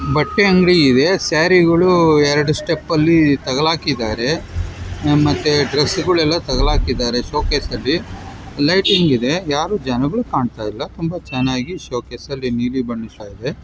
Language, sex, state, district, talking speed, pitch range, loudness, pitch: Kannada, male, Karnataka, Mysore, 115 wpm, 120-165 Hz, -16 LUFS, 145 Hz